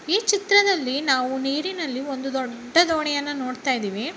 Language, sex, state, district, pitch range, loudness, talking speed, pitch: Kannada, male, Karnataka, Bellary, 260-330 Hz, -22 LUFS, 130 wpm, 275 Hz